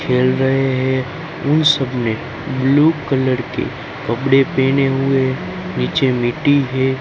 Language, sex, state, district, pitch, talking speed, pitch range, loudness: Hindi, male, Gujarat, Gandhinagar, 135 Hz, 120 wpm, 130-140 Hz, -17 LUFS